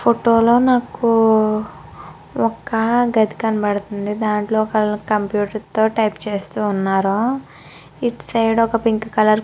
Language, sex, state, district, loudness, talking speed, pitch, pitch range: Telugu, female, Andhra Pradesh, Srikakulam, -18 LUFS, 120 wpm, 220 Hz, 210-230 Hz